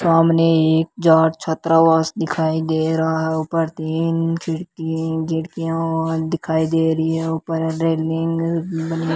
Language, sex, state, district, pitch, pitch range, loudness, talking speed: Hindi, male, Rajasthan, Bikaner, 160 Hz, 160-165 Hz, -19 LUFS, 125 wpm